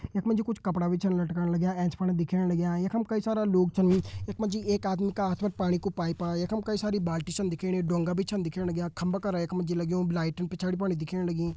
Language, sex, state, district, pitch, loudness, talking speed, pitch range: Hindi, male, Uttarakhand, Tehri Garhwal, 180 Hz, -29 LUFS, 270 wpm, 175-195 Hz